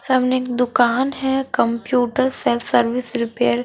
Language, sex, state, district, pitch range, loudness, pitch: Hindi, female, Haryana, Charkhi Dadri, 235-260 Hz, -19 LUFS, 250 Hz